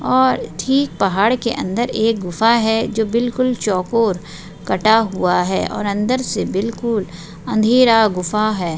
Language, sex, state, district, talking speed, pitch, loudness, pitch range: Hindi, female, Bihar, Purnia, 145 wpm, 220 Hz, -17 LUFS, 190-235 Hz